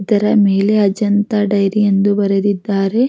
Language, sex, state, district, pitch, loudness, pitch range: Kannada, female, Karnataka, Mysore, 205 Hz, -14 LUFS, 195-210 Hz